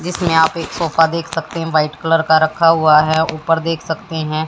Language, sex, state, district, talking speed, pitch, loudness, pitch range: Hindi, female, Haryana, Jhajjar, 225 wpm, 160 Hz, -15 LUFS, 160-165 Hz